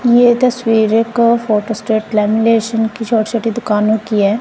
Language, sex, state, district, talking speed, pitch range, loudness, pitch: Hindi, female, Punjab, Kapurthala, 165 wpm, 215-235 Hz, -14 LUFS, 225 Hz